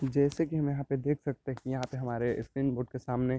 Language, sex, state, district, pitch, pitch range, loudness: Hindi, male, Bihar, Sitamarhi, 135 Hz, 125-140 Hz, -32 LUFS